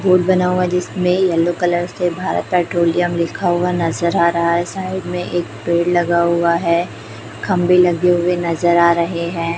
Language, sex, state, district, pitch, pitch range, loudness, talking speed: Hindi, female, Chhattisgarh, Raipur, 175 Hz, 170-180 Hz, -16 LUFS, 180 wpm